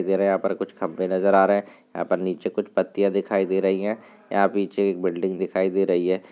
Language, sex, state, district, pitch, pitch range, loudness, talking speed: Hindi, male, Rajasthan, Nagaur, 95 Hz, 95-100 Hz, -23 LUFS, 235 wpm